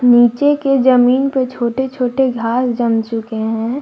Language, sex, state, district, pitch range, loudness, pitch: Hindi, female, Jharkhand, Garhwa, 235-260 Hz, -15 LUFS, 245 Hz